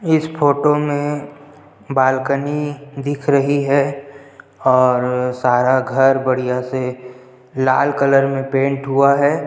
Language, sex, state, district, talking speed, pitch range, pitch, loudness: Hindi, male, Chhattisgarh, Jashpur, 115 wpm, 130-145 Hz, 140 Hz, -17 LUFS